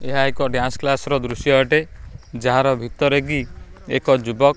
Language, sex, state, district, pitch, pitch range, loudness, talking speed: Odia, male, Odisha, Khordha, 135 Hz, 125-140 Hz, -19 LUFS, 160 wpm